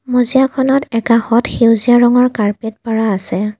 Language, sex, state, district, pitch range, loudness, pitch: Assamese, female, Assam, Kamrup Metropolitan, 225-250 Hz, -13 LUFS, 230 Hz